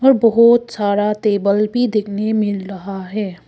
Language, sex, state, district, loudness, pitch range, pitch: Hindi, female, Arunachal Pradesh, Papum Pare, -16 LUFS, 200-230 Hz, 210 Hz